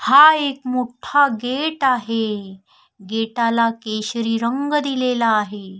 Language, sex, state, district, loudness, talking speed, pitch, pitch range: Marathi, female, Maharashtra, Sindhudurg, -19 LUFS, 105 wpm, 235 Hz, 225-275 Hz